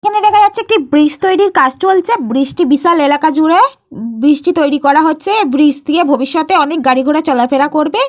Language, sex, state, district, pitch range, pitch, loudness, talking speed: Bengali, female, Jharkhand, Jamtara, 285-375 Hz, 310 Hz, -11 LUFS, 215 wpm